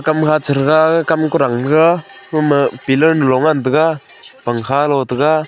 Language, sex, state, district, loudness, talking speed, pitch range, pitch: Wancho, male, Arunachal Pradesh, Longding, -14 LUFS, 155 wpm, 135-155 Hz, 155 Hz